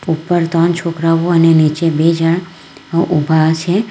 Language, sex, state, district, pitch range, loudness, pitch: Gujarati, female, Gujarat, Valsad, 160-170 Hz, -13 LUFS, 165 Hz